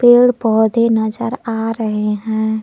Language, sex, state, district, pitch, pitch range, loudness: Hindi, female, Jharkhand, Palamu, 225 Hz, 220-230 Hz, -16 LUFS